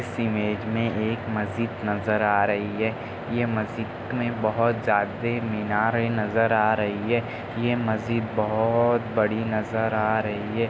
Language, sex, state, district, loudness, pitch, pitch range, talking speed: Hindi, male, Maharashtra, Dhule, -25 LUFS, 110 Hz, 105-115 Hz, 150 wpm